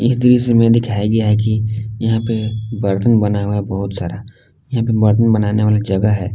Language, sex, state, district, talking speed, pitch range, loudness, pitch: Hindi, male, Jharkhand, Palamu, 205 wpm, 105-115 Hz, -16 LUFS, 110 Hz